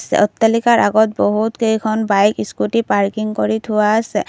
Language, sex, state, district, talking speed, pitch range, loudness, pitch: Assamese, female, Assam, Kamrup Metropolitan, 140 wpm, 205-220 Hz, -16 LUFS, 215 Hz